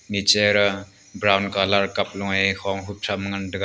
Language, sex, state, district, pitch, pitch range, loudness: Wancho, male, Arunachal Pradesh, Longding, 100 Hz, 95-100 Hz, -21 LUFS